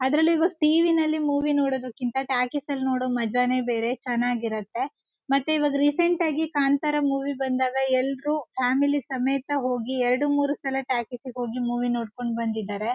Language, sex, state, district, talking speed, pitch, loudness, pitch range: Kannada, female, Karnataka, Shimoga, 160 wpm, 265 Hz, -25 LUFS, 245-290 Hz